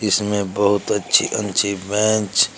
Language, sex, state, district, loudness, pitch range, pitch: Hindi, male, Uttar Pradesh, Shamli, -18 LUFS, 100-105 Hz, 105 Hz